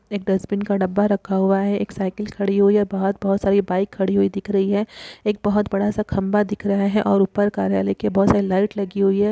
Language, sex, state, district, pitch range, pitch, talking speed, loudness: Hindi, female, Chhattisgarh, Kabirdham, 195-205 Hz, 200 Hz, 255 wpm, -20 LUFS